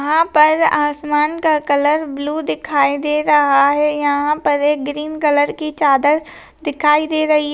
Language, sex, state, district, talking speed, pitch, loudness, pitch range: Hindi, female, Rajasthan, Nagaur, 165 wpm, 300 Hz, -15 LUFS, 290-305 Hz